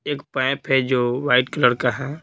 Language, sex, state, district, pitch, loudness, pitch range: Hindi, male, Bihar, Patna, 130 Hz, -20 LUFS, 125-140 Hz